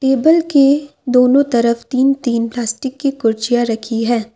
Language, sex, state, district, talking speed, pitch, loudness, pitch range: Hindi, female, Assam, Kamrup Metropolitan, 150 wpm, 250 Hz, -15 LUFS, 235-275 Hz